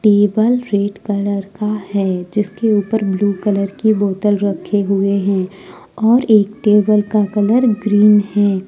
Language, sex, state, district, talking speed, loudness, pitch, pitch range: Hindi, female, Jharkhand, Deoghar, 145 wpm, -15 LUFS, 205 Hz, 200-215 Hz